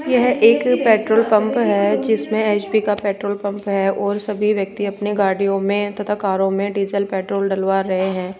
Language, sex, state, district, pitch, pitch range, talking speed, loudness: Hindi, female, Rajasthan, Jaipur, 205 Hz, 195-215 Hz, 185 wpm, -18 LUFS